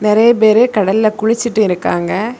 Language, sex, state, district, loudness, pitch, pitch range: Tamil, female, Tamil Nadu, Kanyakumari, -13 LUFS, 215 Hz, 205-230 Hz